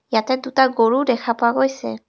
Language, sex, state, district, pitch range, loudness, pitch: Assamese, female, Assam, Kamrup Metropolitan, 230-265 Hz, -18 LUFS, 245 Hz